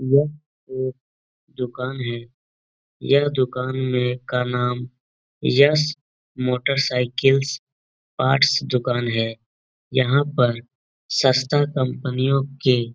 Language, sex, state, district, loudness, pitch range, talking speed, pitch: Hindi, male, Uttar Pradesh, Etah, -21 LUFS, 125-135 Hz, 95 wpm, 130 Hz